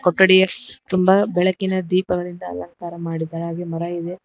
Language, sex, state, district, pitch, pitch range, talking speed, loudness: Kannada, female, Karnataka, Bangalore, 180 Hz, 170-185 Hz, 125 wpm, -20 LUFS